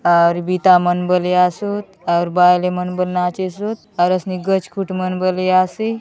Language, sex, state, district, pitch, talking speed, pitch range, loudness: Halbi, female, Chhattisgarh, Bastar, 185 Hz, 170 wpm, 180-190 Hz, -17 LUFS